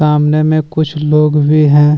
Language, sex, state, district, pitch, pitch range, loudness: Hindi, male, Jharkhand, Deoghar, 150 Hz, 150-155 Hz, -11 LUFS